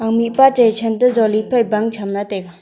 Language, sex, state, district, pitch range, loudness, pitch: Wancho, female, Arunachal Pradesh, Longding, 210-235 Hz, -15 LUFS, 225 Hz